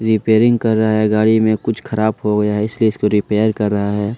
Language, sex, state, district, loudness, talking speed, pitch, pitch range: Hindi, male, Chhattisgarh, Kabirdham, -16 LUFS, 245 wpm, 110 Hz, 105-110 Hz